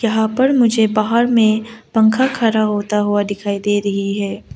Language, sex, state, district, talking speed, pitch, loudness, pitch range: Hindi, female, Arunachal Pradesh, Lower Dibang Valley, 170 wpm, 220 Hz, -16 LUFS, 205-225 Hz